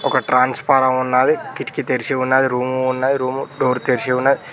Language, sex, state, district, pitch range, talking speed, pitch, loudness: Telugu, male, Telangana, Mahabubabad, 125-135 Hz, 160 wpm, 130 Hz, -18 LUFS